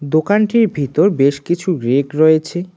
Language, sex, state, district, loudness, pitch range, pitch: Bengali, male, West Bengal, Cooch Behar, -15 LUFS, 145-185 Hz, 160 Hz